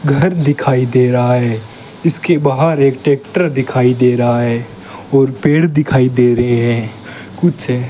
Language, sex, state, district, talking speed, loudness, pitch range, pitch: Hindi, male, Rajasthan, Bikaner, 160 wpm, -13 LUFS, 120-145 Hz, 130 Hz